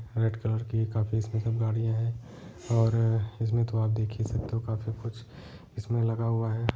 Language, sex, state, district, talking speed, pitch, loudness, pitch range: Hindi, male, Bihar, Jahanabad, 185 wpm, 115 Hz, -29 LUFS, 110-115 Hz